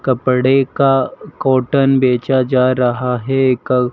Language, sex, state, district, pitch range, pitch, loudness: Hindi, male, Madhya Pradesh, Dhar, 125-135 Hz, 130 Hz, -15 LUFS